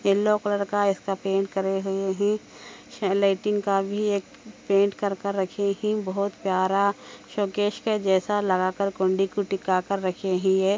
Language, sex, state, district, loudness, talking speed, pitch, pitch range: Hindi, female, Andhra Pradesh, Anantapur, -25 LUFS, 145 wpm, 200 Hz, 195-205 Hz